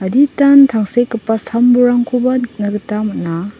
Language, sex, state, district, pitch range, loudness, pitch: Garo, female, Meghalaya, West Garo Hills, 210-250 Hz, -13 LUFS, 240 Hz